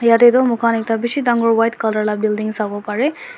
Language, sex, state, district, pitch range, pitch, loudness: Nagamese, female, Nagaland, Dimapur, 215-240 Hz, 230 Hz, -17 LUFS